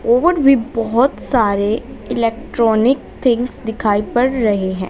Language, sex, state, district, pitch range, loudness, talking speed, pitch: Hindi, female, Haryana, Jhajjar, 215-255 Hz, -16 LUFS, 120 wpm, 230 Hz